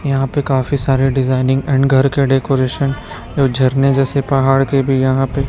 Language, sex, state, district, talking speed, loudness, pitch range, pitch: Hindi, male, Chhattisgarh, Raipur, 185 wpm, -15 LUFS, 130-135 Hz, 135 Hz